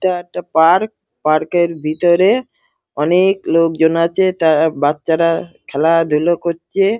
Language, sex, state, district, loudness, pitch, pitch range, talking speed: Bengali, male, West Bengal, Dakshin Dinajpur, -15 LUFS, 170 Hz, 160-185 Hz, 120 wpm